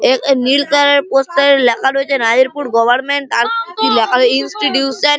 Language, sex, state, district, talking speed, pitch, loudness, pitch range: Bengali, male, West Bengal, Malda, 175 wpm, 275 Hz, -13 LUFS, 255-285 Hz